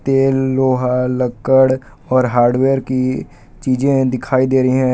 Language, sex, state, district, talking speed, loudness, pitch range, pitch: Hindi, male, Jharkhand, Palamu, 135 wpm, -15 LUFS, 125-130 Hz, 130 Hz